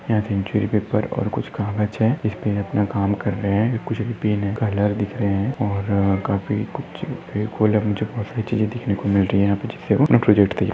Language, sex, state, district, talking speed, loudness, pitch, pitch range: Hindi, male, Maharashtra, Dhule, 155 wpm, -21 LUFS, 105 Hz, 100-110 Hz